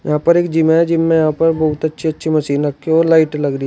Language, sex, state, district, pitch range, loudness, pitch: Hindi, male, Uttar Pradesh, Shamli, 150-165 Hz, -15 LUFS, 160 Hz